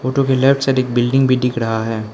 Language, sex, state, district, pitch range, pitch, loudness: Hindi, male, Arunachal Pradesh, Lower Dibang Valley, 115-135 Hz, 130 Hz, -16 LUFS